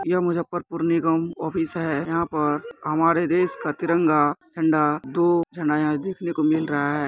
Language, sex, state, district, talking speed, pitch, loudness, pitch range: Hindi, male, Bihar, Muzaffarpur, 160 wpm, 165 Hz, -23 LUFS, 150-170 Hz